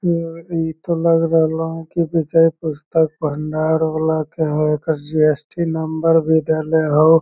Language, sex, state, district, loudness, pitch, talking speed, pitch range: Magahi, male, Bihar, Lakhisarai, -18 LUFS, 160 Hz, 165 wpm, 155-165 Hz